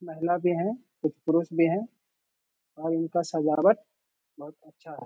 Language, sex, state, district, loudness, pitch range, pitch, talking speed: Hindi, male, Bihar, Jamui, -27 LUFS, 155-175 Hz, 165 Hz, 155 wpm